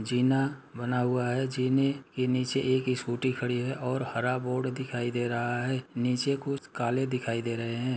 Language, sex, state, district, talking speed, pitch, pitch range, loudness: Hindi, male, Uttar Pradesh, Muzaffarnagar, 190 wpm, 125 Hz, 120-130 Hz, -30 LUFS